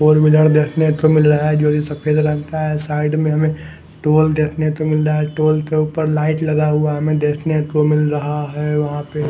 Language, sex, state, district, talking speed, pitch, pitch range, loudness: Hindi, male, Punjab, Fazilka, 140 wpm, 150 Hz, 150-155 Hz, -16 LUFS